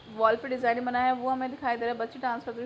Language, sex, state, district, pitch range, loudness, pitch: Hindi, female, Chhattisgarh, Raigarh, 235-255 Hz, -29 LUFS, 245 Hz